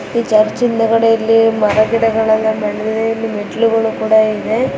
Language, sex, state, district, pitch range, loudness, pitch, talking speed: Kannada, female, Karnataka, Dharwad, 215-225 Hz, -14 LUFS, 225 Hz, 140 wpm